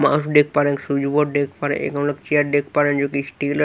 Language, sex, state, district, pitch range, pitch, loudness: Hindi, male, Bihar, Katihar, 140-145 Hz, 145 Hz, -20 LUFS